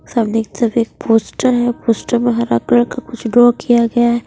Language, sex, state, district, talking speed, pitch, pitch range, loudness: Hindi, female, Punjab, Pathankot, 210 wpm, 235 Hz, 230-240 Hz, -15 LUFS